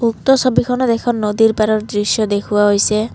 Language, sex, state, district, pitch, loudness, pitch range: Assamese, female, Assam, Kamrup Metropolitan, 215 Hz, -15 LUFS, 210-235 Hz